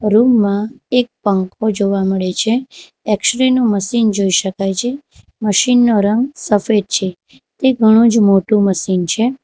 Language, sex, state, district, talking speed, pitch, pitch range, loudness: Gujarati, female, Gujarat, Valsad, 160 wpm, 215 Hz, 195-240 Hz, -14 LUFS